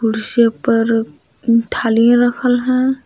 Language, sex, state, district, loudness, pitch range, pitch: Hindi, female, Jharkhand, Palamu, -15 LUFS, 225-250 Hz, 235 Hz